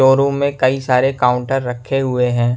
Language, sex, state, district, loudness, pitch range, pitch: Hindi, male, Punjab, Kapurthala, -16 LUFS, 125-135 Hz, 130 Hz